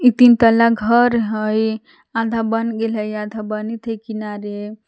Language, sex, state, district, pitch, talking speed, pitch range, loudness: Magahi, female, Jharkhand, Palamu, 225 Hz, 170 wpm, 215-230 Hz, -18 LUFS